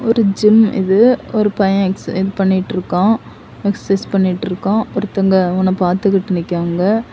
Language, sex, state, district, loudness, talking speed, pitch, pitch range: Tamil, female, Tamil Nadu, Kanyakumari, -15 LUFS, 135 wpm, 195 Hz, 185-210 Hz